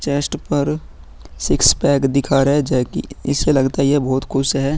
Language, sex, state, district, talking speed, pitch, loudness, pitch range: Hindi, female, Bihar, Vaishali, 200 wpm, 140 Hz, -17 LUFS, 135-145 Hz